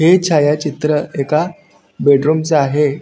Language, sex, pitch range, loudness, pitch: Marathi, male, 145-160 Hz, -15 LUFS, 150 Hz